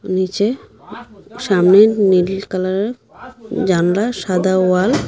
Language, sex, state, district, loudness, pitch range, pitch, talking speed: Bengali, female, Assam, Hailakandi, -15 LUFS, 185-220 Hz, 190 Hz, 95 wpm